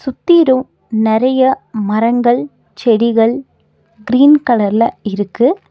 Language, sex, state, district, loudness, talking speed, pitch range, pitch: Tamil, female, Tamil Nadu, Nilgiris, -13 LUFS, 75 wpm, 225-265 Hz, 240 Hz